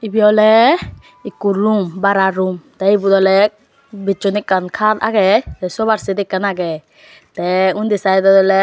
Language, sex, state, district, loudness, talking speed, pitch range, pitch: Chakma, female, Tripura, West Tripura, -15 LUFS, 145 wpm, 190-215 Hz, 200 Hz